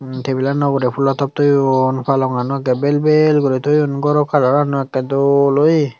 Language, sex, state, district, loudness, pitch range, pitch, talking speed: Chakma, female, Tripura, Unakoti, -15 LUFS, 130-145 Hz, 140 Hz, 140 wpm